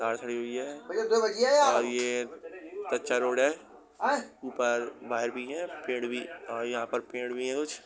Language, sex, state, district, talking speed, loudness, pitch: Hindi, male, Uttar Pradesh, Budaun, 175 wpm, -30 LUFS, 125 Hz